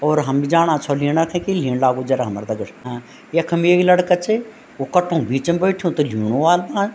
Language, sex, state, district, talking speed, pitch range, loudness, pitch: Garhwali, female, Uttarakhand, Tehri Garhwal, 235 wpm, 135-180 Hz, -18 LUFS, 165 Hz